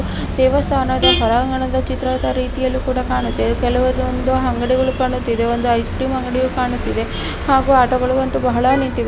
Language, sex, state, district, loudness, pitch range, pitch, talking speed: Kannada, female, Karnataka, Mysore, -17 LUFS, 245-260 Hz, 255 Hz, 120 wpm